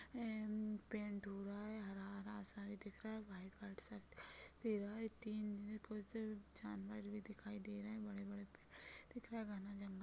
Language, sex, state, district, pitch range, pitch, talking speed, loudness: Hindi, female, Chhattisgarh, Bilaspur, 200-215 Hz, 210 Hz, 205 wpm, -49 LUFS